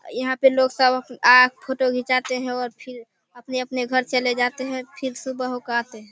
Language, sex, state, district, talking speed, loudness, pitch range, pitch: Hindi, male, Bihar, Begusarai, 195 wpm, -21 LUFS, 245-260 Hz, 255 Hz